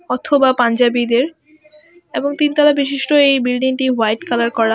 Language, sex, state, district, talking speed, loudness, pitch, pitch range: Bengali, female, West Bengal, Alipurduar, 150 wpm, -15 LUFS, 265 Hz, 240-295 Hz